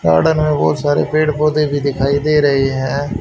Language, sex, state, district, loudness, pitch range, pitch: Hindi, male, Haryana, Rohtak, -15 LUFS, 135-150 Hz, 145 Hz